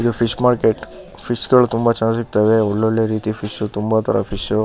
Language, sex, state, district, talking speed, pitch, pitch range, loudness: Kannada, male, Karnataka, Shimoga, 195 wpm, 110 Hz, 110-120 Hz, -18 LUFS